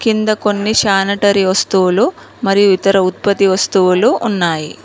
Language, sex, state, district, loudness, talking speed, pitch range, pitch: Telugu, female, Telangana, Mahabubabad, -13 LUFS, 110 wpm, 190-205 Hz, 195 Hz